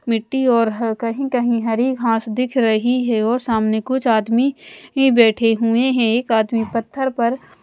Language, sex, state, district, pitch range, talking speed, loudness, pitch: Hindi, female, Odisha, Malkangiri, 225-255 Hz, 175 wpm, -18 LUFS, 235 Hz